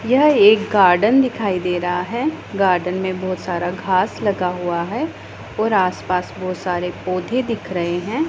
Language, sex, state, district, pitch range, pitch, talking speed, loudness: Hindi, female, Punjab, Pathankot, 180-220 Hz, 185 Hz, 165 wpm, -19 LUFS